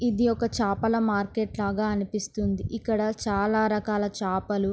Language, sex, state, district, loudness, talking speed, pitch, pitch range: Telugu, female, Andhra Pradesh, Srikakulam, -26 LUFS, 125 wpm, 210 Hz, 200-225 Hz